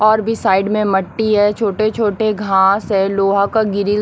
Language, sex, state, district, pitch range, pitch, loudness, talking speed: Hindi, female, Chhattisgarh, Raipur, 195-215 Hz, 205 Hz, -15 LUFS, 210 wpm